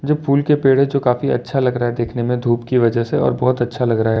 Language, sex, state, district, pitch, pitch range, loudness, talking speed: Hindi, male, Delhi, New Delhi, 125 Hz, 120-140 Hz, -17 LUFS, 330 wpm